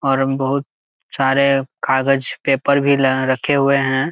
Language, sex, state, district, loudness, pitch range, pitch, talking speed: Hindi, male, Jharkhand, Jamtara, -17 LUFS, 135-140 Hz, 135 Hz, 145 wpm